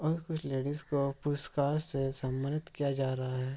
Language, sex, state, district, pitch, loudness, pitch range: Hindi, male, Bihar, Darbhanga, 140 Hz, -34 LUFS, 135-150 Hz